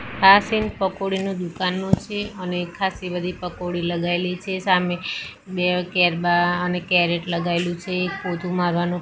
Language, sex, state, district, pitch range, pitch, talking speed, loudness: Gujarati, female, Gujarat, Gandhinagar, 175-190 Hz, 180 Hz, 140 wpm, -22 LUFS